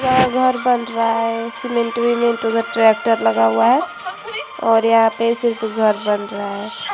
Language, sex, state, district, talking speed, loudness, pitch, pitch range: Hindi, female, Bihar, Vaishali, 175 wpm, -17 LUFS, 230 Hz, 220-235 Hz